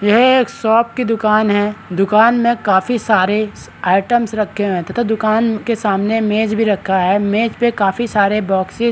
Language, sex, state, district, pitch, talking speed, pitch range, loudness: Hindi, male, Bihar, Kishanganj, 215 Hz, 180 wpm, 200-230 Hz, -15 LUFS